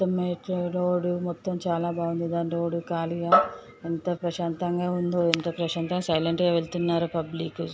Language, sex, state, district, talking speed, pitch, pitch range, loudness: Telugu, female, Andhra Pradesh, Chittoor, 140 wpm, 170 Hz, 170-175 Hz, -27 LUFS